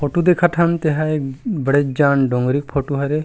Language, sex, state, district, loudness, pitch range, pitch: Chhattisgarhi, male, Chhattisgarh, Rajnandgaon, -18 LUFS, 140-170 Hz, 145 Hz